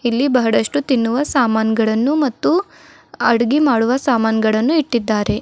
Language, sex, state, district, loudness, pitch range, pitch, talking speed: Kannada, female, Karnataka, Bidar, -16 LUFS, 220-275 Hz, 235 Hz, 100 wpm